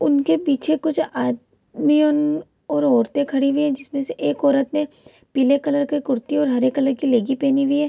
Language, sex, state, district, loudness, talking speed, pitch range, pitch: Hindi, female, Bihar, Kishanganj, -20 LUFS, 215 wpm, 270-295 Hz, 280 Hz